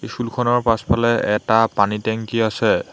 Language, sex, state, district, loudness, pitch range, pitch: Assamese, male, Assam, Hailakandi, -19 LUFS, 105-115 Hz, 115 Hz